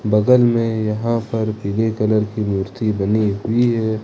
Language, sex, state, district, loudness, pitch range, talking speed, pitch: Hindi, male, Jharkhand, Ranchi, -18 LUFS, 105-115 Hz, 165 wpm, 110 Hz